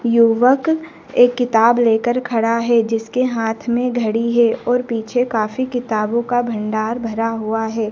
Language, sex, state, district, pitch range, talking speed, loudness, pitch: Hindi, female, Madhya Pradesh, Dhar, 225-245 Hz, 150 wpm, -17 LUFS, 235 Hz